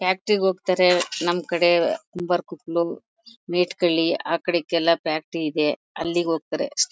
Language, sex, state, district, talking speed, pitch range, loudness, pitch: Kannada, female, Karnataka, Mysore, 120 wpm, 170-185 Hz, -23 LUFS, 175 Hz